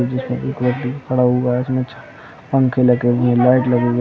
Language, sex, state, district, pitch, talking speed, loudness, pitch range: Hindi, male, Chhattisgarh, Bilaspur, 125 Hz, 240 wpm, -17 LUFS, 125-130 Hz